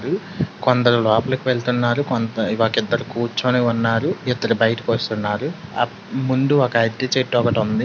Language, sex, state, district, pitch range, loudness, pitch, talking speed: Telugu, male, Telangana, Hyderabad, 115-130 Hz, -20 LUFS, 120 Hz, 135 wpm